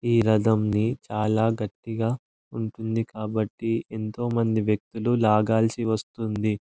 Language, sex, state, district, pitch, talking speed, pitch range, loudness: Telugu, male, Andhra Pradesh, Anantapur, 110 Hz, 110 wpm, 110-115 Hz, -25 LUFS